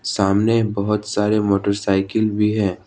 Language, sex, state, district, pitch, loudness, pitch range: Hindi, male, Jharkhand, Ranchi, 105 Hz, -19 LUFS, 100-105 Hz